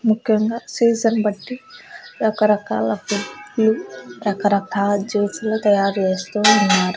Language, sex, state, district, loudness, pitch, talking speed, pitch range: Telugu, female, Andhra Pradesh, Annamaya, -19 LUFS, 205 Hz, 85 wpm, 200-220 Hz